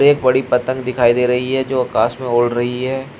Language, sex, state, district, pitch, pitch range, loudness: Hindi, male, Uttar Pradesh, Shamli, 125 Hz, 120-130 Hz, -17 LUFS